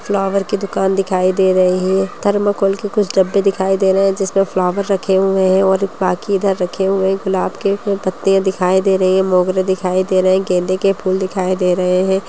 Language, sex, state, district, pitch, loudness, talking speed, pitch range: Hindi, female, Bihar, Gaya, 190 Hz, -15 LUFS, 230 wpm, 185-195 Hz